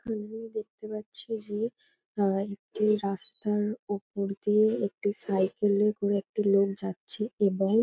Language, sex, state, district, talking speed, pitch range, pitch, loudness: Bengali, female, West Bengal, North 24 Parganas, 140 wpm, 200-215 Hz, 210 Hz, -29 LUFS